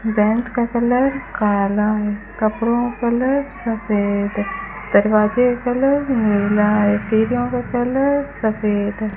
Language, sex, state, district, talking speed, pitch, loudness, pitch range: Hindi, female, Rajasthan, Bikaner, 130 wpm, 225 Hz, -18 LUFS, 210-245 Hz